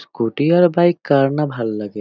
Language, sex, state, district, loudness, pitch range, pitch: Bengali, male, West Bengal, North 24 Parganas, -17 LUFS, 115-170 Hz, 140 Hz